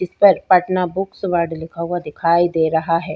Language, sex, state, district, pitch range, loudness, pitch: Hindi, female, Bihar, Vaishali, 165-185 Hz, -18 LUFS, 175 Hz